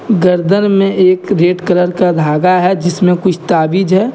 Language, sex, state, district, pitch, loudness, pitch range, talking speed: Hindi, male, Jharkhand, Deoghar, 180 Hz, -11 LUFS, 180-190 Hz, 175 wpm